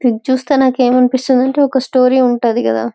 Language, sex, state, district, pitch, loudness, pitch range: Telugu, female, Telangana, Karimnagar, 255 Hz, -13 LUFS, 245-260 Hz